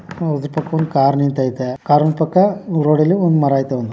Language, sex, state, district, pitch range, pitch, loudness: Kannada, male, Karnataka, Mysore, 135-160 Hz, 150 Hz, -16 LUFS